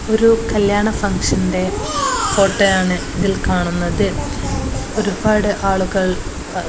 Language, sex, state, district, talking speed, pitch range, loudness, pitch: Malayalam, female, Kerala, Kozhikode, 80 wpm, 175-205 Hz, -17 LUFS, 195 Hz